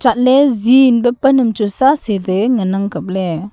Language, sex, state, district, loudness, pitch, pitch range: Wancho, female, Arunachal Pradesh, Longding, -13 LUFS, 235 Hz, 195-260 Hz